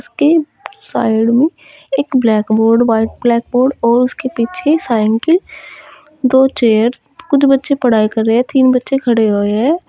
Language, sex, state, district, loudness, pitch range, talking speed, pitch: Hindi, female, Uttar Pradesh, Shamli, -13 LUFS, 230-290 Hz, 150 wpm, 255 Hz